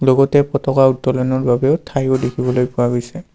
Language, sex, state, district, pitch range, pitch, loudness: Assamese, male, Assam, Kamrup Metropolitan, 125-135 Hz, 130 Hz, -16 LUFS